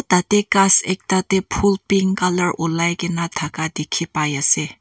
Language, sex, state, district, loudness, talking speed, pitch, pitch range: Nagamese, female, Nagaland, Kohima, -18 LUFS, 160 wpm, 175 Hz, 165-190 Hz